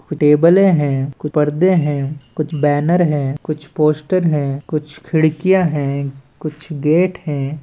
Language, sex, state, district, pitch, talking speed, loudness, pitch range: Chhattisgarhi, male, Chhattisgarh, Balrampur, 150 Hz, 125 wpm, -16 LUFS, 145-160 Hz